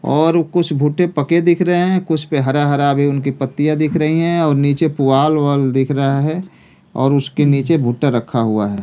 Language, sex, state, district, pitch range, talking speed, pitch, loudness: Hindi, male, Delhi, New Delhi, 140-160 Hz, 205 wpm, 145 Hz, -15 LUFS